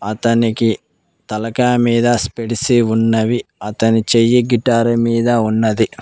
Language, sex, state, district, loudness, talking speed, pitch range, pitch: Telugu, male, Telangana, Mahabubabad, -15 LUFS, 100 wpm, 110-120 Hz, 115 Hz